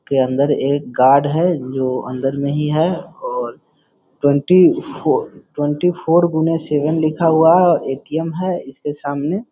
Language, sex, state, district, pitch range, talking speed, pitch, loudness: Hindi, male, Bihar, Sitamarhi, 140-170 Hz, 150 wpm, 150 Hz, -17 LUFS